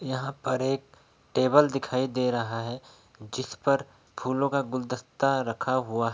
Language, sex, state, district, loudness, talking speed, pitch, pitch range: Hindi, male, Bihar, Begusarai, -28 LUFS, 145 wpm, 130 Hz, 120-135 Hz